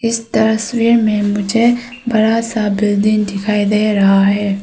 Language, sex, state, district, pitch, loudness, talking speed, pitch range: Hindi, female, Arunachal Pradesh, Papum Pare, 215 Hz, -14 LUFS, 140 wpm, 205-230 Hz